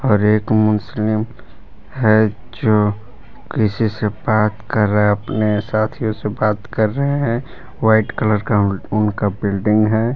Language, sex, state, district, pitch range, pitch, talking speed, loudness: Hindi, male, Jharkhand, Palamu, 105-110 Hz, 110 Hz, 135 wpm, -17 LUFS